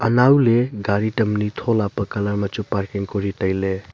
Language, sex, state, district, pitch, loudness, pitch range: Wancho, male, Arunachal Pradesh, Longding, 105 Hz, -20 LUFS, 100-115 Hz